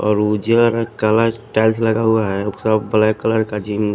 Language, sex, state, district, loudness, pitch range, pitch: Hindi, male, Punjab, Pathankot, -17 LUFS, 105-115 Hz, 110 Hz